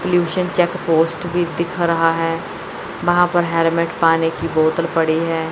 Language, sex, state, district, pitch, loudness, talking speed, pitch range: Hindi, male, Chandigarh, Chandigarh, 165 Hz, -18 LUFS, 165 wpm, 165-175 Hz